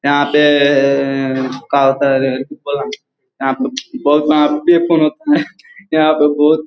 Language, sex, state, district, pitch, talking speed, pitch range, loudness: Hindi, male, Bihar, Gopalganj, 150 Hz, 115 wpm, 140-155 Hz, -14 LUFS